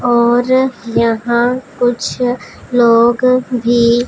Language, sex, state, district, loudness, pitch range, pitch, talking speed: Hindi, male, Punjab, Pathankot, -13 LUFS, 235-250 Hz, 240 Hz, 75 wpm